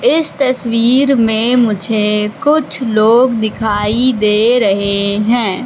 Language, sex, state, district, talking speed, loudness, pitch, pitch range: Hindi, female, Madhya Pradesh, Katni, 105 wpm, -12 LUFS, 230 Hz, 210-250 Hz